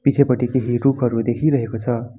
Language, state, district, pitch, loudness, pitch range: Nepali, West Bengal, Darjeeling, 125 Hz, -19 LUFS, 120-135 Hz